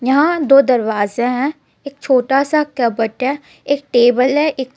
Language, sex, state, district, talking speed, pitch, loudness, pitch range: Hindi, female, Jharkhand, Ranchi, 175 wpm, 265 Hz, -15 LUFS, 245-285 Hz